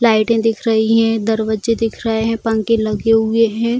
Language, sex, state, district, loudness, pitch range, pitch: Hindi, female, Bihar, Jamui, -16 LUFS, 220-230 Hz, 225 Hz